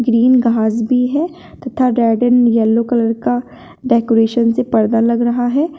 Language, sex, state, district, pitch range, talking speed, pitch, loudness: Hindi, female, Uttar Pradesh, Shamli, 230-250 Hz, 165 wpm, 240 Hz, -14 LUFS